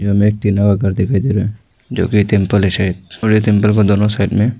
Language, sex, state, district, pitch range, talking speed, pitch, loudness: Hindi, male, Arunachal Pradesh, Lower Dibang Valley, 100-105 Hz, 300 wpm, 105 Hz, -14 LUFS